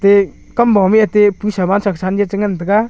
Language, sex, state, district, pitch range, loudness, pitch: Wancho, male, Arunachal Pradesh, Longding, 195-210 Hz, -14 LUFS, 205 Hz